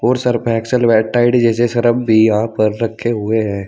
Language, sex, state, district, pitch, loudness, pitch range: Hindi, male, Uttar Pradesh, Saharanpur, 115 Hz, -14 LUFS, 110-120 Hz